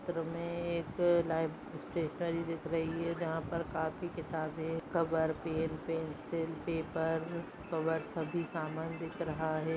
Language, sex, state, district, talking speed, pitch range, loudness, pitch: Hindi, female, Uttar Pradesh, Hamirpur, 135 wpm, 160-170 Hz, -36 LUFS, 165 Hz